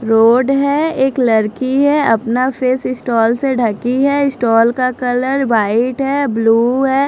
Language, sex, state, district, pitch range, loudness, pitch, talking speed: Hindi, female, Chandigarh, Chandigarh, 230-270 Hz, -14 LUFS, 255 Hz, 145 wpm